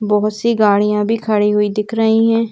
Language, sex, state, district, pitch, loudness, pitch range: Hindi, female, Madhya Pradesh, Bhopal, 215 Hz, -15 LUFS, 210-225 Hz